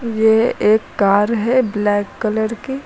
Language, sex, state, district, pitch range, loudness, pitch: Hindi, female, Uttar Pradesh, Lucknow, 210-230 Hz, -16 LUFS, 220 Hz